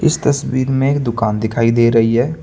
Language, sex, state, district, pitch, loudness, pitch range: Hindi, male, Uttar Pradesh, Saharanpur, 120 Hz, -15 LUFS, 115-140 Hz